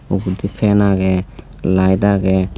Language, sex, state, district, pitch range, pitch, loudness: Chakma, male, Tripura, Unakoti, 95-100 Hz, 95 Hz, -16 LUFS